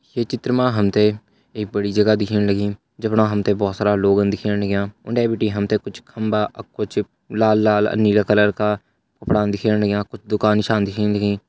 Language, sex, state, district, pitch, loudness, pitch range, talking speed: Hindi, male, Uttarakhand, Uttarkashi, 105 Hz, -19 LUFS, 100-110 Hz, 210 wpm